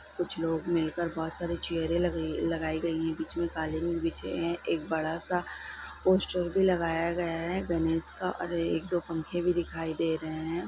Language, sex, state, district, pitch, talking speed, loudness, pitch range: Hindi, female, Bihar, Sitamarhi, 165 Hz, 185 wpm, -31 LUFS, 160-175 Hz